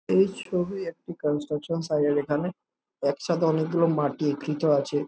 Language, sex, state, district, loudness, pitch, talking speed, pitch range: Bengali, male, West Bengal, Jhargram, -26 LUFS, 155 Hz, 140 wpm, 145-170 Hz